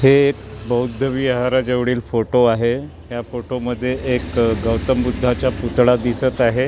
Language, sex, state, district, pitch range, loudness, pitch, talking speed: Marathi, male, Maharashtra, Gondia, 120-130 Hz, -18 LUFS, 125 Hz, 145 wpm